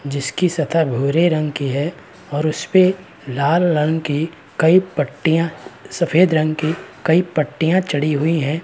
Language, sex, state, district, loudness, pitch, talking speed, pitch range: Hindi, male, Uttar Pradesh, Varanasi, -18 LUFS, 160 Hz, 145 wpm, 150-170 Hz